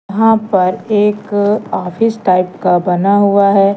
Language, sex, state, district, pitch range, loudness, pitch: Hindi, female, Madhya Pradesh, Katni, 185-210 Hz, -13 LUFS, 200 Hz